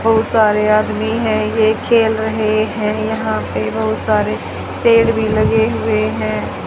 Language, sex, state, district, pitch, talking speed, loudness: Hindi, female, Haryana, Charkhi Dadri, 215 Hz, 155 wpm, -16 LUFS